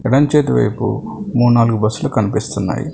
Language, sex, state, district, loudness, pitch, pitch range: Telugu, male, Telangana, Hyderabad, -16 LUFS, 120 Hz, 115-135 Hz